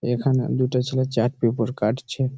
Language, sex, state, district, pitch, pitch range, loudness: Bengali, male, West Bengal, Malda, 125 Hz, 115-130 Hz, -23 LUFS